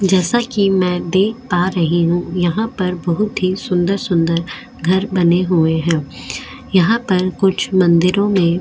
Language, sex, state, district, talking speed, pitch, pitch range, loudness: Hindi, female, Goa, North and South Goa, 160 wpm, 180 Hz, 175-195 Hz, -16 LUFS